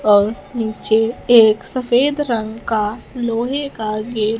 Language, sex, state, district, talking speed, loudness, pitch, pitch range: Hindi, female, Punjab, Fazilka, 135 wpm, -17 LUFS, 225 Hz, 215-245 Hz